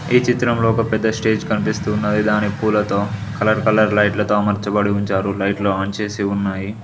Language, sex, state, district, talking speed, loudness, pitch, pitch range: Telugu, male, Telangana, Mahabubabad, 165 wpm, -18 LUFS, 105 Hz, 100-110 Hz